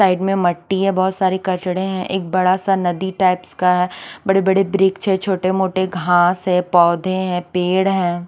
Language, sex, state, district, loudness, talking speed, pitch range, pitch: Hindi, female, Chandigarh, Chandigarh, -17 LUFS, 195 wpm, 180-190 Hz, 185 Hz